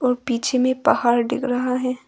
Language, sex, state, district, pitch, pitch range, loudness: Hindi, female, Arunachal Pradesh, Longding, 255 Hz, 245-260 Hz, -20 LUFS